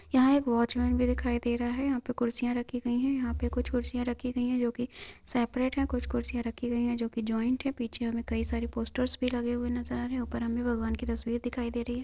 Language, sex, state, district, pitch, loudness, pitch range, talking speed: Hindi, female, Chhattisgarh, Raigarh, 245 Hz, -31 LUFS, 235-250 Hz, 265 wpm